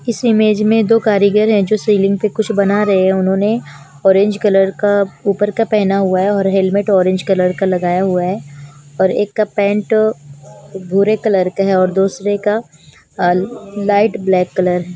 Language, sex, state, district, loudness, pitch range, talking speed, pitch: Hindi, female, Chandigarh, Chandigarh, -14 LUFS, 185-210 Hz, 185 wpm, 195 Hz